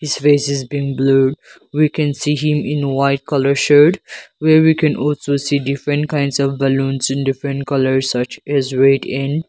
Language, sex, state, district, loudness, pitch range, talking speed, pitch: English, male, Nagaland, Kohima, -16 LUFS, 135-150 Hz, 190 wpm, 140 Hz